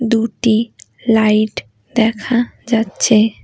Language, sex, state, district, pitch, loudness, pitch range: Bengali, female, West Bengal, Cooch Behar, 225 Hz, -16 LUFS, 215-230 Hz